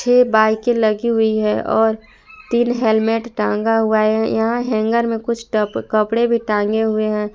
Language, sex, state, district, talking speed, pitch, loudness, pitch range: Hindi, female, Jharkhand, Palamu, 180 wpm, 220 Hz, -17 LUFS, 215-235 Hz